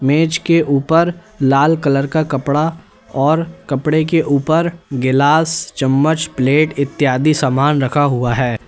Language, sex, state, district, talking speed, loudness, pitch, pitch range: Hindi, male, Uttar Pradesh, Lalitpur, 130 wpm, -15 LUFS, 145 Hz, 135-160 Hz